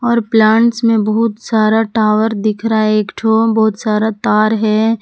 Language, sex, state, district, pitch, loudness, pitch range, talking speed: Hindi, female, Jharkhand, Palamu, 220 Hz, -13 LUFS, 215-225 Hz, 165 wpm